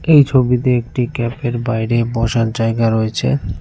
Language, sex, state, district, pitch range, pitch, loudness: Bengali, male, West Bengal, Cooch Behar, 115-125 Hz, 120 Hz, -16 LUFS